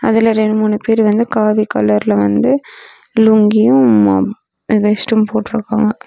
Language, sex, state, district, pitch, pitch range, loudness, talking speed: Tamil, female, Tamil Nadu, Namakkal, 215 Hz, 150-225 Hz, -13 LUFS, 110 wpm